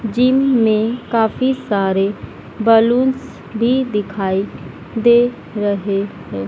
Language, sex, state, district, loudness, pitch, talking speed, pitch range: Hindi, female, Madhya Pradesh, Dhar, -16 LUFS, 225 Hz, 90 wpm, 200-245 Hz